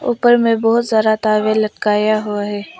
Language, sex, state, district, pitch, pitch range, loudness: Hindi, female, Arunachal Pradesh, Papum Pare, 215 Hz, 215-230 Hz, -15 LUFS